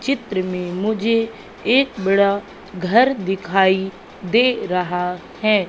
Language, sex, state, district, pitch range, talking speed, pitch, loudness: Hindi, female, Madhya Pradesh, Katni, 185-225 Hz, 105 wpm, 195 Hz, -19 LUFS